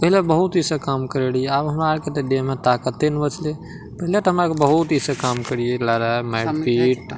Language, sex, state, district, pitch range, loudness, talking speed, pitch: Maithili, male, Bihar, Madhepura, 125-160 Hz, -20 LUFS, 215 wpm, 140 Hz